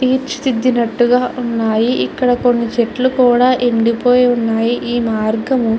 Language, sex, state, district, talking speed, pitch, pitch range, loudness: Telugu, female, Andhra Pradesh, Chittoor, 125 wpm, 245 Hz, 230-250 Hz, -14 LUFS